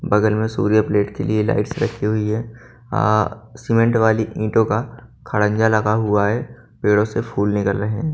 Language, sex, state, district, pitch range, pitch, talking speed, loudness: Hindi, male, Haryana, Charkhi Dadri, 105-115 Hz, 110 Hz, 175 wpm, -19 LUFS